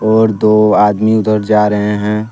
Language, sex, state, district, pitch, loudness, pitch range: Hindi, male, Jharkhand, Deoghar, 105 Hz, -12 LUFS, 105-110 Hz